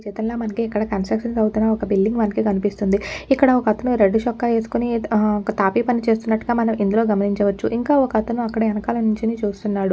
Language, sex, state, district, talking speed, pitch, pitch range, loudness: Telugu, female, Telangana, Nalgonda, 145 wpm, 220 Hz, 205-230 Hz, -20 LUFS